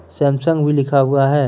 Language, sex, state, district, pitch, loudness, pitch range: Hindi, male, Jharkhand, Deoghar, 140 Hz, -16 LUFS, 135-145 Hz